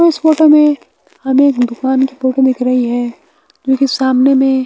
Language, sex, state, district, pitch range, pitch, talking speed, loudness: Hindi, male, Bihar, West Champaran, 260-290 Hz, 265 Hz, 205 wpm, -12 LUFS